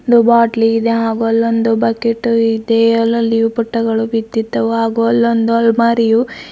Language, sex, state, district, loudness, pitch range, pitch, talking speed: Kannada, female, Karnataka, Bidar, -14 LUFS, 225-230 Hz, 230 Hz, 120 wpm